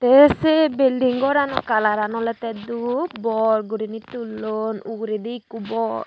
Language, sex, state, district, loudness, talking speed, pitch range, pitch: Chakma, female, Tripura, Unakoti, -21 LUFS, 130 wpm, 220-255 Hz, 225 Hz